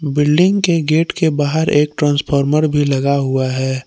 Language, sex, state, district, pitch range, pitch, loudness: Hindi, male, Jharkhand, Palamu, 140-155 Hz, 145 Hz, -15 LUFS